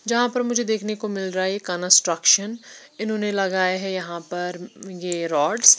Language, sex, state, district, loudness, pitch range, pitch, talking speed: Hindi, female, Bihar, Patna, -21 LUFS, 180-220 Hz, 190 Hz, 185 wpm